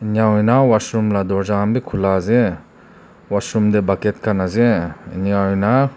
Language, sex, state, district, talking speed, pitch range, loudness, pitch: Nagamese, male, Nagaland, Kohima, 150 wpm, 100-115 Hz, -17 LUFS, 105 Hz